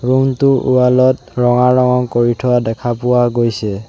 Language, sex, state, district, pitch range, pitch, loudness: Assamese, male, Assam, Sonitpur, 120-130 Hz, 125 Hz, -14 LUFS